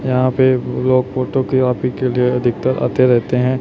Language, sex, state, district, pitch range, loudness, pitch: Hindi, male, Chhattisgarh, Raipur, 125-130 Hz, -16 LUFS, 130 Hz